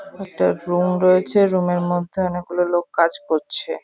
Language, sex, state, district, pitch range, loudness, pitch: Bengali, female, West Bengal, Jhargram, 175-190 Hz, -19 LUFS, 180 Hz